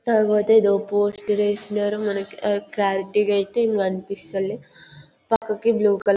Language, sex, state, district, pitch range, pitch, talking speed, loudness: Telugu, female, Telangana, Karimnagar, 200-210 Hz, 205 Hz, 135 wpm, -22 LUFS